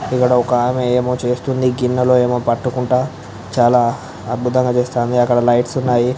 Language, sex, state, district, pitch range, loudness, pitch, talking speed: Telugu, male, Andhra Pradesh, Visakhapatnam, 120-125 Hz, -16 LUFS, 125 Hz, 145 wpm